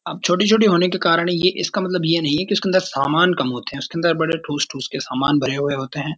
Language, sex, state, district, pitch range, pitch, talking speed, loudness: Hindi, male, Uttarakhand, Uttarkashi, 140-180 Hz, 165 Hz, 280 wpm, -19 LUFS